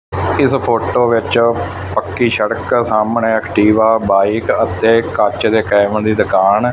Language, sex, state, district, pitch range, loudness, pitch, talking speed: Punjabi, male, Punjab, Fazilka, 100-115 Hz, -14 LUFS, 110 Hz, 125 wpm